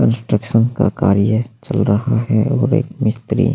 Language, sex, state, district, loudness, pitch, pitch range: Hindi, male, Chhattisgarh, Sukma, -16 LUFS, 115 Hz, 110-125 Hz